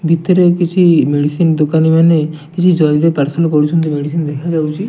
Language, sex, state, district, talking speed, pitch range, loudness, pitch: Odia, male, Odisha, Nuapada, 120 wpm, 150-170 Hz, -13 LUFS, 160 Hz